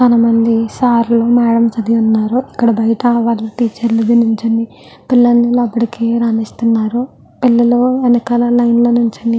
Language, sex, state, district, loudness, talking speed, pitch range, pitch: Telugu, female, Andhra Pradesh, Guntur, -13 LUFS, 135 wpm, 230-240 Hz, 235 Hz